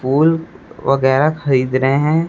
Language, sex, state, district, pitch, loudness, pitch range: Hindi, male, Chhattisgarh, Raipur, 140 Hz, -16 LUFS, 135-160 Hz